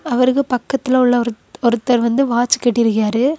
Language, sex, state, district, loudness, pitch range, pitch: Tamil, female, Tamil Nadu, Kanyakumari, -16 LUFS, 235-255 Hz, 245 Hz